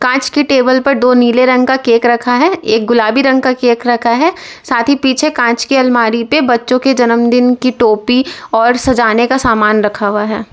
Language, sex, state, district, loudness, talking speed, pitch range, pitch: Hindi, female, Uttar Pradesh, Lalitpur, -11 LUFS, 210 wpm, 235-260 Hz, 245 Hz